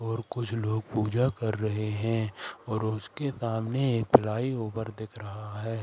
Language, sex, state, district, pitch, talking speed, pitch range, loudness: Hindi, male, Madhya Pradesh, Katni, 110 Hz, 165 wpm, 110-115 Hz, -30 LUFS